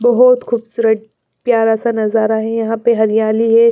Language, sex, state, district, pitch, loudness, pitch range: Hindi, female, Bihar, Patna, 225 Hz, -14 LUFS, 220-235 Hz